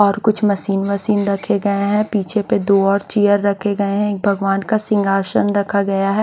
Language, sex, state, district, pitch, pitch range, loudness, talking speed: Hindi, female, Odisha, Khordha, 200 Hz, 195-205 Hz, -17 LUFS, 200 wpm